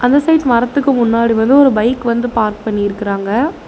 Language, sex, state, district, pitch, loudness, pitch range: Tamil, female, Tamil Nadu, Nilgiris, 235 Hz, -13 LUFS, 220-270 Hz